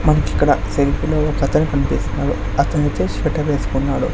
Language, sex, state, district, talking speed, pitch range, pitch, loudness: Telugu, male, Andhra Pradesh, Sri Satya Sai, 115 wpm, 100-150 Hz, 140 Hz, -18 LUFS